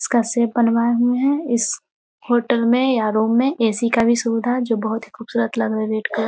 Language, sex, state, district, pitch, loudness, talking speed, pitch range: Hindi, female, Bihar, Muzaffarpur, 235 Hz, -19 LUFS, 260 wpm, 225-245 Hz